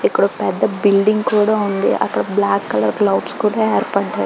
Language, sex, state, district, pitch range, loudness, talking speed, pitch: Telugu, female, Telangana, Karimnagar, 200-215 Hz, -17 LUFS, 170 wpm, 205 Hz